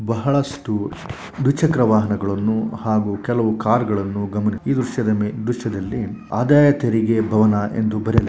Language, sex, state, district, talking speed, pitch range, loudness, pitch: Kannada, male, Karnataka, Shimoga, 100 wpm, 105-120 Hz, -19 LUFS, 110 Hz